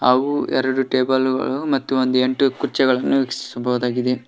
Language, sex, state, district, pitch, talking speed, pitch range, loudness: Kannada, male, Karnataka, Koppal, 130 Hz, 125 wpm, 125-135 Hz, -19 LUFS